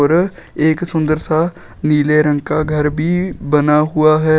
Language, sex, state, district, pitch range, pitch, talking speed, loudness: Hindi, male, Uttar Pradesh, Shamli, 150-160 Hz, 155 Hz, 165 wpm, -15 LUFS